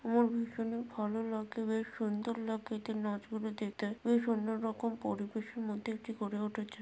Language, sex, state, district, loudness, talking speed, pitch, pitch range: Bengali, female, West Bengal, Malda, -37 LUFS, 165 wpm, 220 Hz, 215-230 Hz